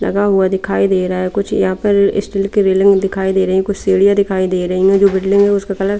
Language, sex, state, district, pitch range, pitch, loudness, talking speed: Hindi, female, Delhi, New Delhi, 190-200 Hz, 195 Hz, -14 LUFS, 280 wpm